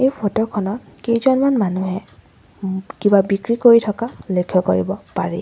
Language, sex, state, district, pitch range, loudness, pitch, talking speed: Assamese, female, Assam, Sonitpur, 185-230 Hz, -18 LUFS, 205 Hz, 145 wpm